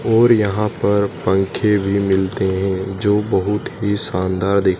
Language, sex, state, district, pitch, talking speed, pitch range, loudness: Hindi, male, Madhya Pradesh, Dhar, 100 Hz, 150 wpm, 95-105 Hz, -18 LUFS